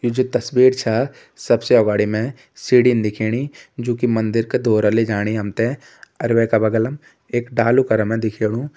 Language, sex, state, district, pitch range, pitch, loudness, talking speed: Hindi, male, Uttarakhand, Tehri Garhwal, 110-125 Hz, 115 Hz, -18 LUFS, 170 wpm